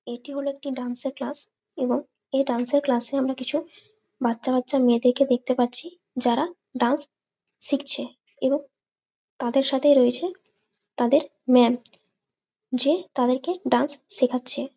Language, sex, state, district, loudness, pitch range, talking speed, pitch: Bengali, female, West Bengal, Malda, -23 LUFS, 250-290 Hz, 125 wpm, 275 Hz